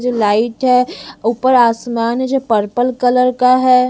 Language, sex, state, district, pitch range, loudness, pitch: Hindi, female, Delhi, New Delhi, 230-255 Hz, -14 LUFS, 250 Hz